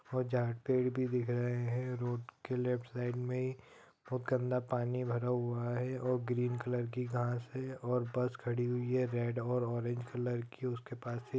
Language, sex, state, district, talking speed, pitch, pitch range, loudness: Hindi, male, Bihar, Gopalganj, 200 wpm, 125 Hz, 120-125 Hz, -36 LUFS